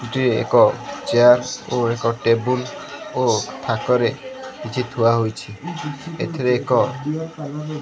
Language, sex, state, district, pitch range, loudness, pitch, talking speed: Odia, male, Odisha, Khordha, 115-145 Hz, -20 LUFS, 125 Hz, 100 wpm